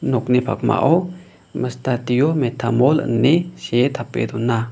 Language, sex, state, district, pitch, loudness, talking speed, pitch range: Garo, male, Meghalaya, West Garo Hills, 125 Hz, -19 LUFS, 100 wpm, 120-150 Hz